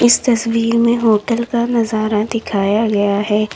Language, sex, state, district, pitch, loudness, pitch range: Hindi, female, Uttar Pradesh, Lalitpur, 230 Hz, -15 LUFS, 210-235 Hz